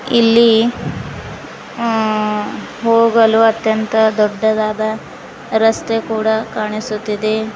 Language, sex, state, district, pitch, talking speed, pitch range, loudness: Kannada, female, Karnataka, Bidar, 220 Hz, 65 wpm, 215-225 Hz, -15 LUFS